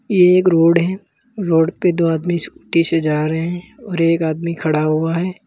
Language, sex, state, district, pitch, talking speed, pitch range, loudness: Hindi, male, Uttar Pradesh, Lalitpur, 170 Hz, 210 wpm, 165-180 Hz, -17 LUFS